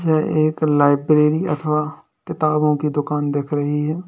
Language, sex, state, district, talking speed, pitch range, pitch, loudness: Hindi, male, Uttar Pradesh, Lalitpur, 145 wpm, 150-155 Hz, 150 Hz, -18 LUFS